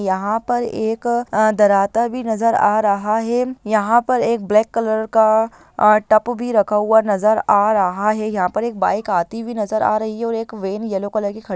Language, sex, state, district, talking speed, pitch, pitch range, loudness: Hindi, female, Bihar, Sitamarhi, 225 wpm, 215 Hz, 205-230 Hz, -18 LUFS